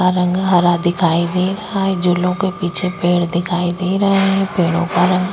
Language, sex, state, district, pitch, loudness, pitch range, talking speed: Hindi, female, Maharashtra, Chandrapur, 180 Hz, -16 LUFS, 175-190 Hz, 215 wpm